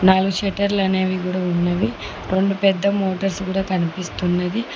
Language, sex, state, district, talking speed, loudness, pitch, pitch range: Telugu, female, Telangana, Mahabubabad, 125 wpm, -20 LUFS, 190 Hz, 180-195 Hz